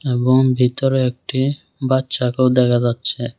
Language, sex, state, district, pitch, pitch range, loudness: Bengali, male, Tripura, West Tripura, 130 Hz, 125-130 Hz, -17 LUFS